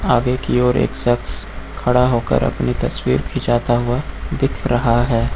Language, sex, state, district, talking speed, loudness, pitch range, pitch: Hindi, male, Uttar Pradesh, Lucknow, 155 wpm, -18 LUFS, 120-125 Hz, 120 Hz